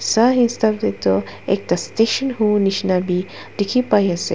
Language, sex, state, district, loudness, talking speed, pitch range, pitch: Nagamese, female, Nagaland, Dimapur, -18 LUFS, 165 wpm, 180-225 Hz, 205 Hz